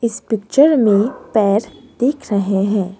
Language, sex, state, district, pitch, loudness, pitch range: Hindi, female, Assam, Kamrup Metropolitan, 215 Hz, -16 LUFS, 200-240 Hz